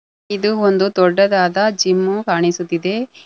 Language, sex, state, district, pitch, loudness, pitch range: Kannada, female, Karnataka, Bangalore, 195 Hz, -16 LUFS, 180-205 Hz